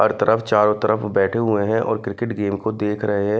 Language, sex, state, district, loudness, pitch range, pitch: Hindi, male, Himachal Pradesh, Shimla, -20 LUFS, 105-110 Hz, 105 Hz